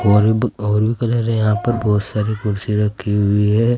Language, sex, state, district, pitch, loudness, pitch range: Hindi, male, Uttar Pradesh, Saharanpur, 105 Hz, -18 LUFS, 105-115 Hz